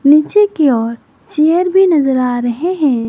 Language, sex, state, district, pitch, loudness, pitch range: Hindi, female, Jharkhand, Garhwa, 300 Hz, -13 LUFS, 250-355 Hz